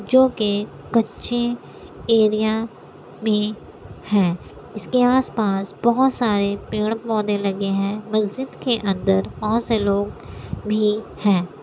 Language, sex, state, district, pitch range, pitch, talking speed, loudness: Hindi, female, Bihar, Kishanganj, 200-230 Hz, 215 Hz, 110 wpm, -21 LUFS